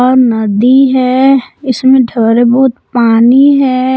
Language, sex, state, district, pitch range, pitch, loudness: Hindi, female, Jharkhand, Palamu, 240-265 Hz, 255 Hz, -8 LUFS